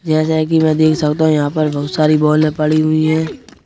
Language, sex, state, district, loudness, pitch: Hindi, male, Madhya Pradesh, Bhopal, -14 LUFS, 155 Hz